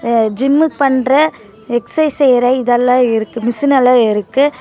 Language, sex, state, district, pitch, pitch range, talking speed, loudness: Tamil, female, Tamil Nadu, Namakkal, 250 Hz, 235-275 Hz, 115 wpm, -13 LUFS